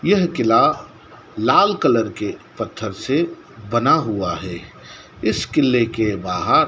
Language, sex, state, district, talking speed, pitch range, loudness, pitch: Hindi, male, Madhya Pradesh, Dhar, 125 wpm, 110-170 Hz, -19 LUFS, 120 Hz